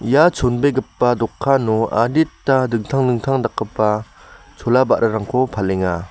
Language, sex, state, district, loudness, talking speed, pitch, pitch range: Garo, male, Meghalaya, West Garo Hills, -18 LUFS, 100 wpm, 120 Hz, 110-135 Hz